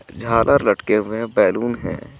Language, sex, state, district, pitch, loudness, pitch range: Hindi, male, Jharkhand, Garhwa, 115 Hz, -18 LUFS, 110-120 Hz